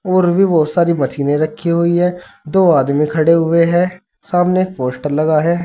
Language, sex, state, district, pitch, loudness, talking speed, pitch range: Hindi, male, Uttar Pradesh, Saharanpur, 170 Hz, -15 LUFS, 180 wpm, 155-180 Hz